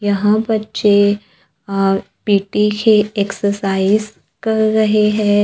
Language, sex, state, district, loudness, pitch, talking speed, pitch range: Hindi, male, Maharashtra, Gondia, -15 LUFS, 205 Hz, 90 wpm, 200-215 Hz